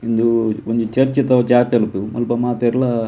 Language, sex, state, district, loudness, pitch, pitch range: Tulu, male, Karnataka, Dakshina Kannada, -17 LUFS, 120 Hz, 115-125 Hz